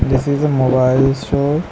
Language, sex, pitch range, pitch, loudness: English, male, 130-140 Hz, 135 Hz, -15 LUFS